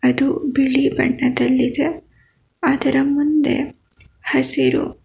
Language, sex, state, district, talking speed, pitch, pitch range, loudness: Kannada, female, Karnataka, Bangalore, 70 wpm, 275 Hz, 255-290 Hz, -17 LUFS